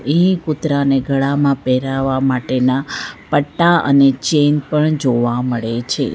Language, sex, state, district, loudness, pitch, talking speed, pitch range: Gujarati, female, Gujarat, Valsad, -16 LUFS, 135 Hz, 115 wpm, 130-150 Hz